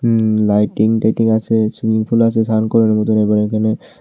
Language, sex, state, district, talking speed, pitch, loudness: Bengali, male, Tripura, West Tripura, 180 wpm, 110 Hz, -15 LUFS